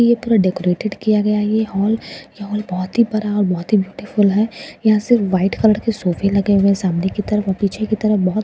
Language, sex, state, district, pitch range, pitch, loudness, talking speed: Hindi, female, Bihar, Katihar, 195-215 Hz, 210 Hz, -17 LUFS, 255 wpm